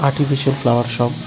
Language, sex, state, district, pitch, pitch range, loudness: Bengali, male, Tripura, West Tripura, 135 Hz, 120-140 Hz, -17 LUFS